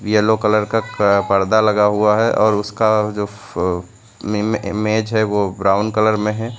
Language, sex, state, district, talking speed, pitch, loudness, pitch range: Hindi, male, Uttar Pradesh, Lucknow, 190 wpm, 105 Hz, -17 LUFS, 105-110 Hz